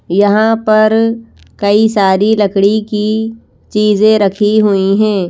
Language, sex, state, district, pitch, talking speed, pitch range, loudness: Hindi, female, Madhya Pradesh, Bhopal, 210 Hz, 115 wpm, 205-220 Hz, -11 LUFS